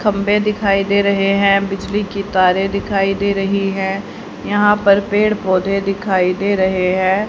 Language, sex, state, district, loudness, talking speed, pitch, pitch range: Hindi, male, Haryana, Charkhi Dadri, -16 LUFS, 165 wpm, 195 Hz, 195-200 Hz